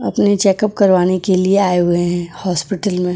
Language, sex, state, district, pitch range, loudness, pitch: Hindi, female, Goa, North and South Goa, 180-200 Hz, -15 LUFS, 185 Hz